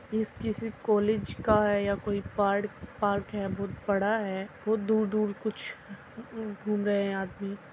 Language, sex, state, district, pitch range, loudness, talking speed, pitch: Hindi, female, Uttar Pradesh, Muzaffarnagar, 200-215 Hz, -30 LUFS, 155 wpm, 205 Hz